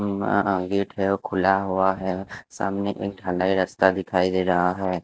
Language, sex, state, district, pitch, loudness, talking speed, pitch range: Hindi, male, Himachal Pradesh, Shimla, 95 Hz, -23 LUFS, 165 wpm, 95-100 Hz